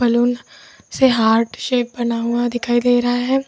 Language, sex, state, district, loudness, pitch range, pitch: Hindi, female, Uttar Pradesh, Lalitpur, -17 LUFS, 235-245 Hz, 240 Hz